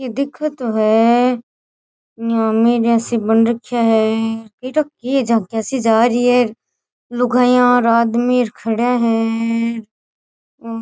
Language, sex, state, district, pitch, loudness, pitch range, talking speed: Rajasthani, female, Rajasthan, Churu, 235 Hz, -16 LUFS, 225-245 Hz, 115 wpm